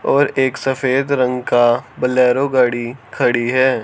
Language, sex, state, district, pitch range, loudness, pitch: Hindi, male, Haryana, Charkhi Dadri, 120-130 Hz, -16 LUFS, 125 Hz